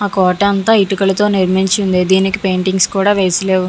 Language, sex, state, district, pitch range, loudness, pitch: Telugu, female, Andhra Pradesh, Visakhapatnam, 185-200 Hz, -13 LUFS, 195 Hz